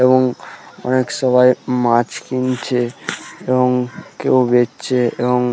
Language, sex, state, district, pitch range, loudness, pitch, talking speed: Bengali, male, West Bengal, Purulia, 120-130 Hz, -17 LUFS, 125 Hz, 100 wpm